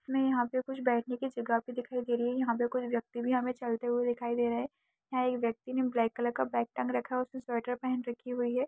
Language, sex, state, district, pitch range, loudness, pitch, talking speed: Hindi, female, Uttarakhand, Tehri Garhwal, 235-255 Hz, -33 LUFS, 245 Hz, 275 wpm